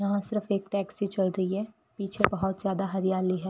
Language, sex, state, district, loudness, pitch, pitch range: Hindi, female, Rajasthan, Bikaner, -29 LUFS, 195 Hz, 190-200 Hz